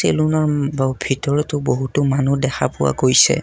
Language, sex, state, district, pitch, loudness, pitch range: Assamese, male, Assam, Kamrup Metropolitan, 140 Hz, -18 LUFS, 130-150 Hz